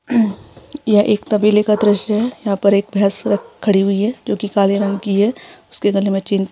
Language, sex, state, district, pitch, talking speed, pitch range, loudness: Hindi, female, Chhattisgarh, Bilaspur, 205 Hz, 240 wpm, 200-210 Hz, -16 LUFS